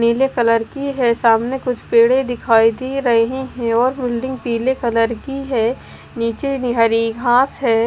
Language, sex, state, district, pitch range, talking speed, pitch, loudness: Hindi, female, Bihar, West Champaran, 230-260 Hz, 165 wpm, 240 Hz, -17 LUFS